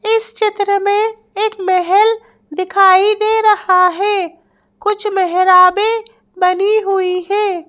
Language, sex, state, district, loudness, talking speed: Hindi, female, Madhya Pradesh, Bhopal, -13 LUFS, 110 wpm